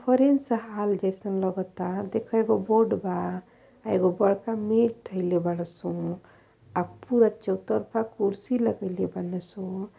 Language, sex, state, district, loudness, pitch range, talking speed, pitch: Bhojpuri, female, Uttar Pradesh, Ghazipur, -27 LUFS, 185-225 Hz, 125 wpm, 200 Hz